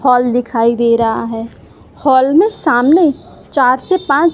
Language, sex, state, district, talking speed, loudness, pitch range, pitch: Hindi, female, Madhya Pradesh, Umaria, 150 wpm, -13 LUFS, 235-300 Hz, 255 Hz